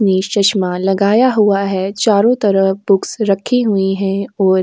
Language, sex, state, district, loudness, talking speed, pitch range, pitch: Hindi, female, Uttar Pradesh, Jyotiba Phule Nagar, -14 LUFS, 170 wpm, 195-210 Hz, 195 Hz